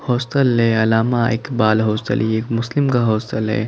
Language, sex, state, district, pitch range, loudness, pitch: Hindi, male, Bihar, Kaimur, 110-125 Hz, -18 LUFS, 115 Hz